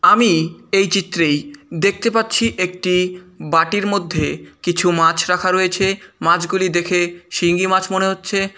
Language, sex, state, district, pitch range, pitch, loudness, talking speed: Bengali, male, West Bengal, Malda, 170-195 Hz, 180 Hz, -17 LUFS, 125 wpm